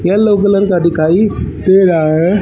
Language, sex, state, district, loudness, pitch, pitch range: Hindi, male, Haryana, Rohtak, -11 LUFS, 190 Hz, 170-200 Hz